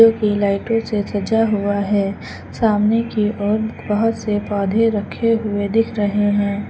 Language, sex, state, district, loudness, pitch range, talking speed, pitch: Hindi, female, Uttar Pradesh, Lucknow, -18 LUFS, 205-225 Hz, 145 wpm, 210 Hz